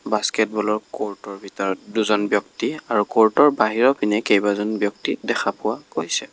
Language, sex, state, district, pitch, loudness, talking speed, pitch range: Assamese, male, Assam, Kamrup Metropolitan, 105 Hz, -21 LUFS, 130 wpm, 105-110 Hz